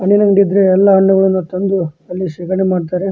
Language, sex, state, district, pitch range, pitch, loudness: Kannada, male, Karnataka, Dharwad, 185-195 Hz, 190 Hz, -13 LUFS